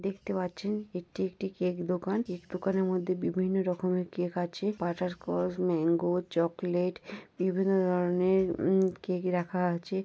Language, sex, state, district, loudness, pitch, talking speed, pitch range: Bengali, female, West Bengal, North 24 Parganas, -31 LUFS, 180 Hz, 135 wpm, 175-190 Hz